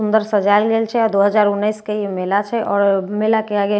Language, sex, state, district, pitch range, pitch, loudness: Maithili, female, Bihar, Katihar, 200-220 Hz, 210 Hz, -17 LUFS